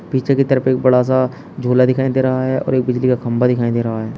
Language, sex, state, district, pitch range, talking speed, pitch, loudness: Hindi, male, Uttar Pradesh, Shamli, 125-130 Hz, 275 wpm, 130 Hz, -16 LUFS